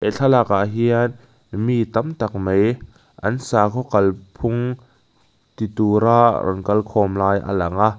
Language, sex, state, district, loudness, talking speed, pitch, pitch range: Mizo, male, Mizoram, Aizawl, -19 LUFS, 145 wpm, 110 Hz, 100-120 Hz